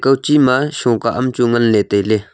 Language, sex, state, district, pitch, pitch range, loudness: Wancho, male, Arunachal Pradesh, Longding, 120 Hz, 110-135 Hz, -15 LUFS